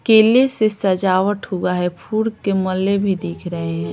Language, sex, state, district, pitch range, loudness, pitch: Hindi, female, Bihar, Patna, 180-215 Hz, -18 LUFS, 190 Hz